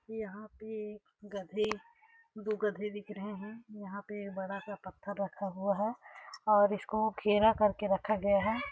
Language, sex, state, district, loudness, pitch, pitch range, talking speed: Hindi, female, Chhattisgarh, Sarguja, -33 LUFS, 210 Hz, 200-220 Hz, 160 wpm